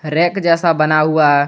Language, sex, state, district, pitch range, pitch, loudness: Hindi, male, Jharkhand, Garhwa, 150-170 Hz, 155 Hz, -14 LUFS